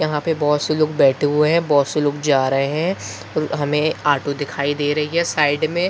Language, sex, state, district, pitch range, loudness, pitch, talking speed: Hindi, male, Bihar, Begusarai, 145-155 Hz, -19 LUFS, 150 Hz, 225 wpm